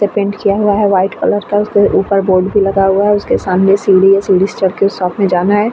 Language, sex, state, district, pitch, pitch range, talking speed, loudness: Hindi, female, Uttar Pradesh, Etah, 200 Hz, 190-205 Hz, 280 wpm, -12 LUFS